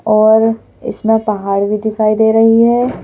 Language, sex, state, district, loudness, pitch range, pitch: Hindi, female, Madhya Pradesh, Bhopal, -12 LUFS, 215-225 Hz, 220 Hz